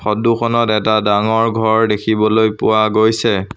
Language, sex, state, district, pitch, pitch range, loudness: Assamese, male, Assam, Sonitpur, 110 Hz, 110-115 Hz, -14 LUFS